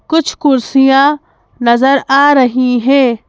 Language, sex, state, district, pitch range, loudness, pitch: Hindi, female, Madhya Pradesh, Bhopal, 255-285 Hz, -10 LUFS, 270 Hz